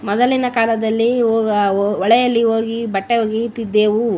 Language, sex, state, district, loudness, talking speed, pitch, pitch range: Kannada, female, Karnataka, Bellary, -16 LUFS, 115 wpm, 225 Hz, 210-235 Hz